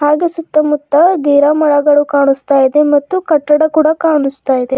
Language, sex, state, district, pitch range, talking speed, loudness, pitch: Kannada, female, Karnataka, Bidar, 285-310 Hz, 140 wpm, -11 LUFS, 295 Hz